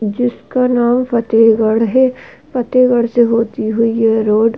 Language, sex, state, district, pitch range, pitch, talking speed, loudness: Hindi, female, Uttar Pradesh, Hamirpur, 225-245 Hz, 235 Hz, 145 wpm, -14 LUFS